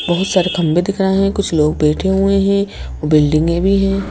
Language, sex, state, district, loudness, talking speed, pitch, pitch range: Hindi, female, Madhya Pradesh, Bhopal, -15 LUFS, 205 wpm, 190 Hz, 165-195 Hz